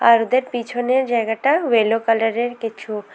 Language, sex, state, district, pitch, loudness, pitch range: Bengali, female, Tripura, West Tripura, 235 Hz, -19 LUFS, 225-245 Hz